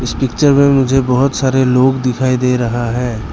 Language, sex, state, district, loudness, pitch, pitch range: Hindi, male, Arunachal Pradesh, Lower Dibang Valley, -13 LUFS, 130 Hz, 125-135 Hz